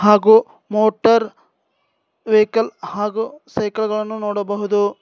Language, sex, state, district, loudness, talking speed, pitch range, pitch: Kannada, male, Karnataka, Bangalore, -18 LUFS, 85 wpm, 210-220 Hz, 215 Hz